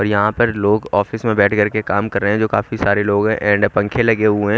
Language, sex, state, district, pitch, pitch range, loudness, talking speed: Hindi, male, Haryana, Rohtak, 105 Hz, 100-110 Hz, -16 LUFS, 300 wpm